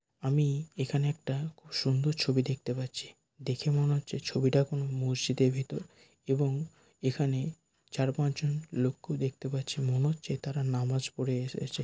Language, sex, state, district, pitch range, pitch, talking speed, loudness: Bengali, male, West Bengal, Malda, 130-145 Hz, 135 Hz, 145 wpm, -32 LUFS